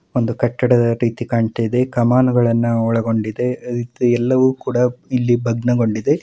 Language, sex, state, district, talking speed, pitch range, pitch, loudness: Kannada, male, Karnataka, Mysore, 105 wpm, 115-125 Hz, 120 Hz, -17 LUFS